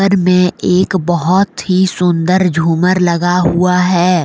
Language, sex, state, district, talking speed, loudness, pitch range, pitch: Hindi, female, Jharkhand, Deoghar, 125 wpm, -12 LUFS, 175-185 Hz, 180 Hz